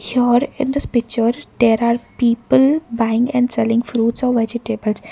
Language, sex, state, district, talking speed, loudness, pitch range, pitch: English, female, Karnataka, Bangalore, 150 wpm, -17 LUFS, 230-250 Hz, 235 Hz